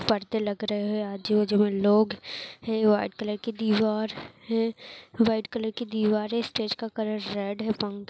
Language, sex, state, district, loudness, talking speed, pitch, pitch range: Hindi, female, Bihar, Madhepura, -27 LUFS, 195 wpm, 215 Hz, 210-225 Hz